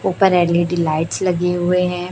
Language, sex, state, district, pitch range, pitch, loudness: Hindi, female, Chhattisgarh, Raipur, 170-180 Hz, 180 Hz, -17 LUFS